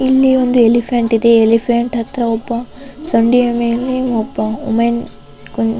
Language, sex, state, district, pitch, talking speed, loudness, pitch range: Kannada, female, Karnataka, Raichur, 235 Hz, 125 wpm, -14 LUFS, 230-250 Hz